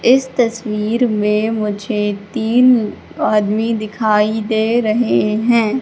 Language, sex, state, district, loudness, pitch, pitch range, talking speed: Hindi, female, Madhya Pradesh, Katni, -16 LUFS, 220 Hz, 210-240 Hz, 105 wpm